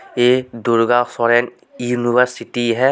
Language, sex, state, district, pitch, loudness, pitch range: Hindi, male, Jharkhand, Deoghar, 120 Hz, -17 LUFS, 120-125 Hz